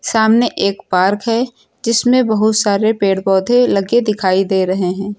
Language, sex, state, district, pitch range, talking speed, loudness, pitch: Hindi, female, Uttar Pradesh, Lucknow, 195-230 Hz, 160 wpm, -15 LUFS, 210 Hz